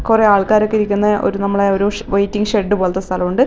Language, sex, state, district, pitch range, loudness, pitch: Malayalam, female, Kerala, Wayanad, 200-210 Hz, -15 LUFS, 205 Hz